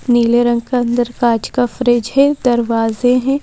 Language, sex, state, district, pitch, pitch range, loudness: Hindi, female, Madhya Pradesh, Bhopal, 240 Hz, 235-250 Hz, -15 LUFS